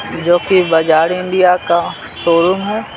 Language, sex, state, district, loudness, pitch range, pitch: Hindi, male, Bihar, Patna, -13 LUFS, 170-185 Hz, 175 Hz